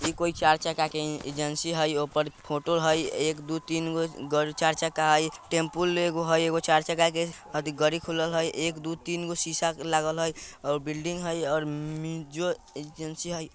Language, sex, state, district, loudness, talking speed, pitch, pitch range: Bajjika, male, Bihar, Vaishali, -28 LUFS, 185 wpm, 160 Hz, 155-165 Hz